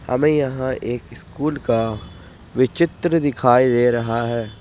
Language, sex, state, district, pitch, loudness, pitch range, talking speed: Hindi, male, Jharkhand, Ranchi, 120 Hz, -19 LUFS, 115-140 Hz, 130 wpm